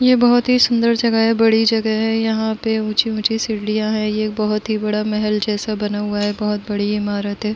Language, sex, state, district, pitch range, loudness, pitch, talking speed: Hindi, female, Uttar Pradesh, Muzaffarnagar, 210-225 Hz, -18 LUFS, 215 Hz, 220 wpm